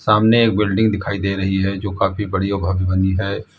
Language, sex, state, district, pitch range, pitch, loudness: Hindi, male, Uttar Pradesh, Lalitpur, 95-105 Hz, 100 Hz, -18 LUFS